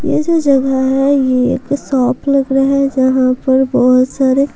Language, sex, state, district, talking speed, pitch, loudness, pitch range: Hindi, female, Bihar, Patna, 185 wpm, 265 Hz, -13 LUFS, 260-275 Hz